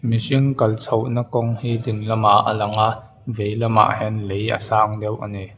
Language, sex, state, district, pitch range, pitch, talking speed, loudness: Mizo, male, Mizoram, Aizawl, 105-115 Hz, 110 Hz, 205 wpm, -20 LUFS